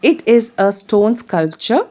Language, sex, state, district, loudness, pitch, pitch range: English, female, Telangana, Hyderabad, -15 LUFS, 210 Hz, 195-235 Hz